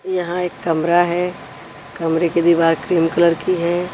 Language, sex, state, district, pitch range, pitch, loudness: Hindi, female, Punjab, Pathankot, 165-175 Hz, 170 Hz, -18 LUFS